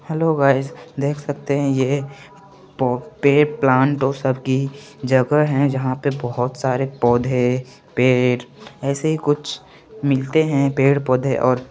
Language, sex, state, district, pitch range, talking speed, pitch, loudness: Hindi, male, Chandigarh, Chandigarh, 130-145 Hz, 115 wpm, 135 Hz, -19 LUFS